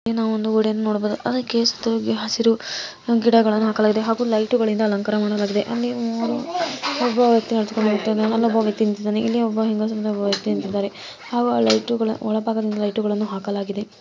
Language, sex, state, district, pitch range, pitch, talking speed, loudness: Kannada, female, Karnataka, Mysore, 210-230 Hz, 220 Hz, 120 wpm, -21 LUFS